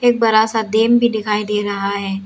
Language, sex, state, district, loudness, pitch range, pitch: Hindi, female, Arunachal Pradesh, Lower Dibang Valley, -16 LUFS, 205-225 Hz, 215 Hz